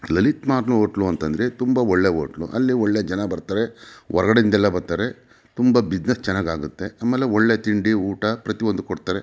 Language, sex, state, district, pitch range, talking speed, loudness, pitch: Kannada, male, Karnataka, Mysore, 95-120 Hz, 155 wpm, -21 LUFS, 105 Hz